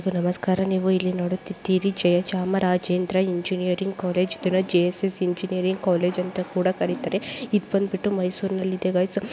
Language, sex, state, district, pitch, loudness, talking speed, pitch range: Kannada, female, Karnataka, Mysore, 185 Hz, -24 LUFS, 90 wpm, 180-195 Hz